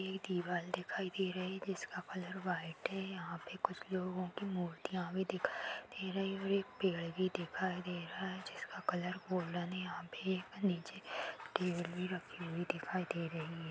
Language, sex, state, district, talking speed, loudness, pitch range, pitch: Hindi, male, Bihar, Lakhisarai, 190 wpm, -41 LUFS, 175-190 Hz, 185 Hz